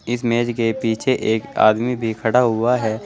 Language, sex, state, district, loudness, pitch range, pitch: Hindi, male, Uttar Pradesh, Saharanpur, -19 LUFS, 110-120 Hz, 115 Hz